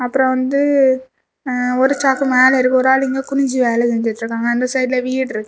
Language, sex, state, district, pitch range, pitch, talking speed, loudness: Tamil, female, Tamil Nadu, Kanyakumari, 250-265 Hz, 260 Hz, 185 wpm, -16 LUFS